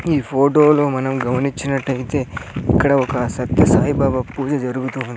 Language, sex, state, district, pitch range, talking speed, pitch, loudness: Telugu, male, Andhra Pradesh, Sri Satya Sai, 125-140 Hz, 115 wpm, 135 Hz, -18 LUFS